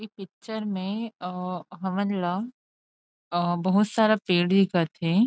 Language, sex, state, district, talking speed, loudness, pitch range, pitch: Chhattisgarhi, female, Chhattisgarh, Rajnandgaon, 135 wpm, -26 LUFS, 180-215 Hz, 195 Hz